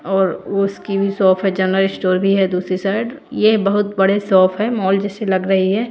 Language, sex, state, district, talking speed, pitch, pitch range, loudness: Hindi, female, Bihar, Kaimur, 215 wpm, 195 Hz, 190-205 Hz, -17 LUFS